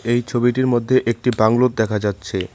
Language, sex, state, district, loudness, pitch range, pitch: Bengali, male, West Bengal, Cooch Behar, -18 LUFS, 105-125 Hz, 120 Hz